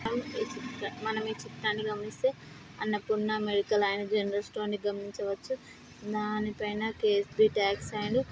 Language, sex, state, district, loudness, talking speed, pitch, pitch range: Telugu, female, Andhra Pradesh, Srikakulam, -31 LUFS, 145 wpm, 215 Hz, 205-220 Hz